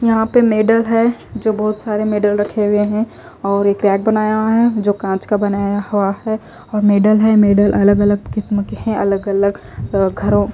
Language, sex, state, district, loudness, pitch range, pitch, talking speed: Hindi, female, Himachal Pradesh, Shimla, -15 LUFS, 200-220 Hz, 210 Hz, 190 wpm